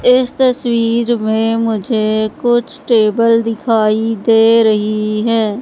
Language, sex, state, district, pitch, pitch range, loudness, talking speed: Hindi, female, Madhya Pradesh, Katni, 225 Hz, 220-235 Hz, -14 LUFS, 105 wpm